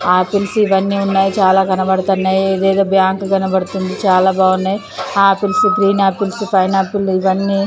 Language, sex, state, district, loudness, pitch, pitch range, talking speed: Telugu, female, Andhra Pradesh, Chittoor, -14 LUFS, 195 Hz, 190-200 Hz, 135 wpm